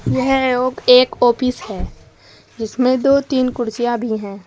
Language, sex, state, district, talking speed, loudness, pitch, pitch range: Hindi, female, Uttar Pradesh, Saharanpur, 150 wpm, -16 LUFS, 250 Hz, 230-255 Hz